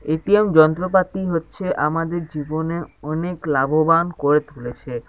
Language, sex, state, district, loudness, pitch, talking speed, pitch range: Bengali, male, West Bengal, Jhargram, -20 LUFS, 160 Hz, 105 wpm, 150-170 Hz